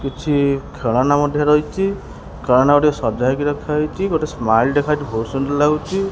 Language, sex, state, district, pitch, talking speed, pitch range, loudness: Odia, male, Odisha, Khordha, 145 Hz, 135 wpm, 135-150 Hz, -18 LUFS